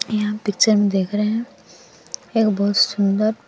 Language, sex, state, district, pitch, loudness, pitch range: Hindi, female, Bihar, West Champaran, 210 Hz, -19 LUFS, 205-220 Hz